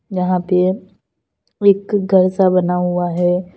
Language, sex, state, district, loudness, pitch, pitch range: Hindi, female, Uttar Pradesh, Lalitpur, -16 LUFS, 185 Hz, 180-190 Hz